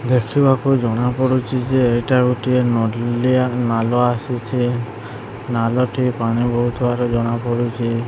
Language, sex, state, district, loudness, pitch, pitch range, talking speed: Odia, male, Odisha, Sambalpur, -18 LUFS, 120 Hz, 115-125 Hz, 110 wpm